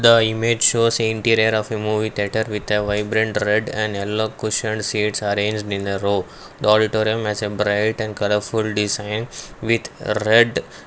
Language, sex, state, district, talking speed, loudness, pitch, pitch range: English, male, Karnataka, Bangalore, 170 wpm, -20 LUFS, 110 Hz, 105-110 Hz